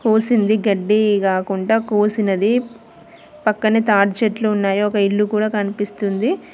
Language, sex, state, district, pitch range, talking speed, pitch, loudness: Telugu, female, Telangana, Mahabubabad, 200-220 Hz, 110 wpm, 210 Hz, -18 LUFS